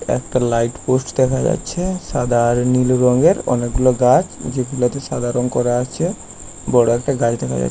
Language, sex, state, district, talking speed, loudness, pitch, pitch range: Bengali, male, West Bengal, Paschim Medinipur, 165 wpm, -17 LUFS, 125 Hz, 120-130 Hz